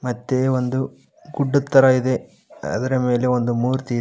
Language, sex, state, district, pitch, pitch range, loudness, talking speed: Kannada, male, Karnataka, Koppal, 130 Hz, 125-130 Hz, -20 LUFS, 150 wpm